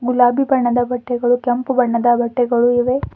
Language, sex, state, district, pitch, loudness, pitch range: Kannada, female, Karnataka, Bidar, 245 Hz, -16 LUFS, 240-250 Hz